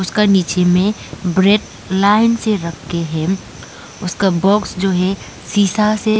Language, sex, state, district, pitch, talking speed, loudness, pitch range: Hindi, female, Arunachal Pradesh, Lower Dibang Valley, 195 Hz, 135 wpm, -16 LUFS, 180-210 Hz